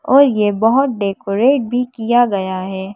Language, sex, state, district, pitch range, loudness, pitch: Hindi, female, Madhya Pradesh, Bhopal, 195-250 Hz, -15 LUFS, 225 Hz